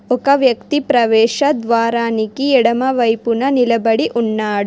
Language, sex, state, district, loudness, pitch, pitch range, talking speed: Telugu, female, Telangana, Hyderabad, -15 LUFS, 235 Hz, 225-260 Hz, 90 wpm